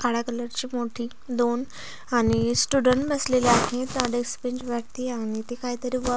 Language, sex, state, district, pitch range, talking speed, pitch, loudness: Marathi, female, Maharashtra, Pune, 240-255 Hz, 175 wpm, 245 Hz, -25 LUFS